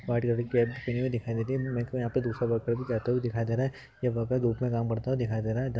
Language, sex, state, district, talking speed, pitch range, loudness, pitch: Hindi, male, Rajasthan, Churu, 270 wpm, 115-125 Hz, -30 LUFS, 120 Hz